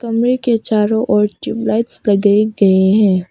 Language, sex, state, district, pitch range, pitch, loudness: Hindi, female, Arunachal Pradesh, Papum Pare, 200-230 Hz, 215 Hz, -14 LUFS